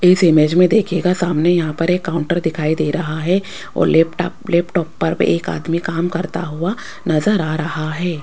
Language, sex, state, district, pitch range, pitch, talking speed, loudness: Hindi, female, Rajasthan, Jaipur, 160-180 Hz, 170 Hz, 190 wpm, -17 LUFS